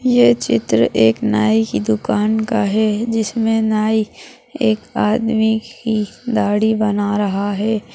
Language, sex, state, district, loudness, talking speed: Hindi, female, Bihar, Jahanabad, -17 LUFS, 130 wpm